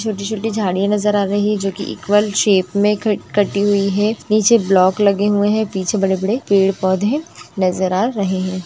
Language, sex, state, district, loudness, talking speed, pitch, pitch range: Hindi, female, Maharashtra, Nagpur, -17 LUFS, 195 wpm, 205 Hz, 195-210 Hz